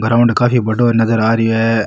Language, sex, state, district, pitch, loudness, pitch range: Rajasthani, male, Rajasthan, Nagaur, 115 Hz, -13 LUFS, 115-120 Hz